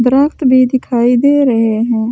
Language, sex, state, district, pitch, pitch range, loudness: Hindi, female, Delhi, New Delhi, 250 Hz, 235-265 Hz, -12 LUFS